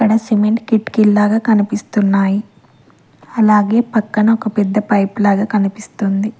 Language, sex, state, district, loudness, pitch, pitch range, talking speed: Telugu, female, Telangana, Mahabubabad, -14 LUFS, 210 Hz, 205-220 Hz, 105 wpm